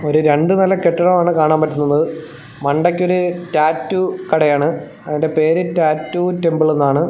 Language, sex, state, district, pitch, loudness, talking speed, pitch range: Malayalam, male, Kerala, Thiruvananthapuram, 160 Hz, -16 LUFS, 125 wpm, 155-175 Hz